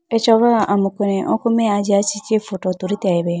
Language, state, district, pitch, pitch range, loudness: Idu Mishmi, Arunachal Pradesh, Lower Dibang Valley, 205 Hz, 195-225 Hz, -17 LUFS